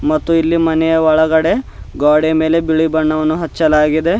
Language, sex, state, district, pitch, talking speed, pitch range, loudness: Kannada, male, Karnataka, Bidar, 160 Hz, 130 wpm, 155-165 Hz, -14 LUFS